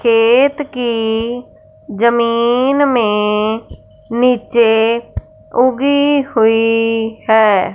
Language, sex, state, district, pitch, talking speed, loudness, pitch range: Hindi, female, Punjab, Fazilka, 230 Hz, 60 wpm, -14 LUFS, 220-250 Hz